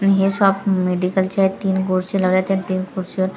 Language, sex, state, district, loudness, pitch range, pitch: Marathi, female, Maharashtra, Gondia, -19 LUFS, 185-195 Hz, 190 Hz